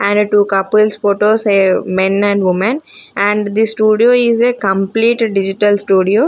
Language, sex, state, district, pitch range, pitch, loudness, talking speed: English, female, Punjab, Fazilka, 195-220 Hz, 205 Hz, -13 LUFS, 155 wpm